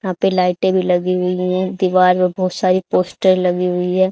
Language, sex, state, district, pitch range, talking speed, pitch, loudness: Hindi, female, Haryana, Charkhi Dadri, 180-185 Hz, 205 wpm, 185 Hz, -16 LUFS